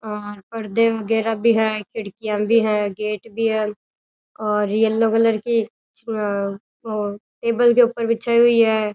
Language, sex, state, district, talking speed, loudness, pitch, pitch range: Rajasthani, female, Rajasthan, Churu, 140 wpm, -20 LUFS, 220 Hz, 210-230 Hz